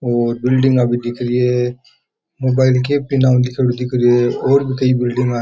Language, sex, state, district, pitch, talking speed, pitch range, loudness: Rajasthani, male, Rajasthan, Churu, 125 Hz, 175 wpm, 120-130 Hz, -16 LUFS